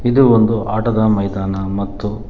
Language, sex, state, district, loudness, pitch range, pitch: Kannada, male, Karnataka, Bangalore, -16 LUFS, 100-115 Hz, 105 Hz